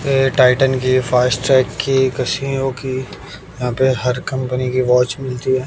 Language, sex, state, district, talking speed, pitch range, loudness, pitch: Hindi, male, Bihar, West Champaran, 160 wpm, 125-135 Hz, -17 LUFS, 130 Hz